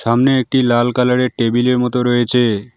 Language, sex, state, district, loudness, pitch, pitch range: Bengali, male, West Bengal, Alipurduar, -15 LUFS, 125 Hz, 120-125 Hz